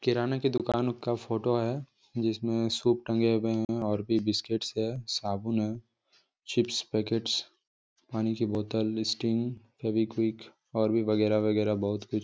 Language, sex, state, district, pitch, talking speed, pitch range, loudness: Hindi, male, Jharkhand, Jamtara, 115 Hz, 145 wpm, 110-120 Hz, -30 LUFS